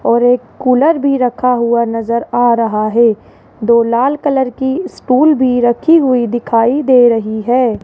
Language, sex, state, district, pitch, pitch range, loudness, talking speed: Hindi, female, Rajasthan, Jaipur, 245 Hz, 235-265 Hz, -12 LUFS, 170 wpm